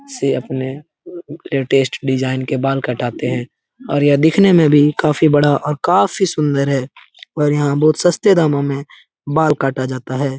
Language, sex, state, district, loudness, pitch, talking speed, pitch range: Hindi, male, Bihar, Lakhisarai, -16 LUFS, 145 Hz, 175 wpm, 135-155 Hz